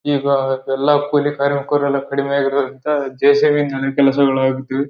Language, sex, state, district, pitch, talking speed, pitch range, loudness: Kannada, male, Karnataka, Bellary, 140 Hz, 135 wpm, 135-145 Hz, -17 LUFS